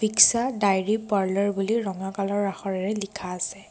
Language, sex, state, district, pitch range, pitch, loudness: Assamese, female, Assam, Kamrup Metropolitan, 195-215 Hz, 200 Hz, -24 LUFS